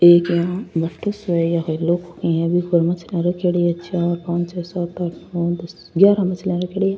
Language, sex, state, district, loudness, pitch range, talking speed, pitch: Rajasthani, female, Rajasthan, Churu, -20 LUFS, 170-180 Hz, 165 wpm, 175 Hz